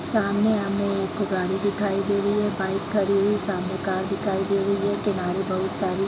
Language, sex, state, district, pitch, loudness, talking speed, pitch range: Hindi, female, Bihar, East Champaran, 200 Hz, -24 LUFS, 205 wpm, 190-205 Hz